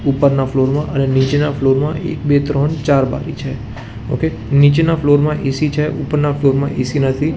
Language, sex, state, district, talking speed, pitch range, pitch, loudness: Gujarati, male, Gujarat, Gandhinagar, 195 wpm, 135-150 Hz, 140 Hz, -16 LUFS